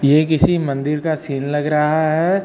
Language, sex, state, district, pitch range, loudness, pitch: Hindi, male, Uttar Pradesh, Lucknow, 145-160 Hz, -17 LUFS, 155 Hz